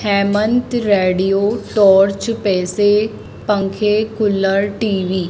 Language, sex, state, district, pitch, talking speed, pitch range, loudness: Hindi, female, Madhya Pradesh, Dhar, 205 Hz, 90 wpm, 195-215 Hz, -16 LUFS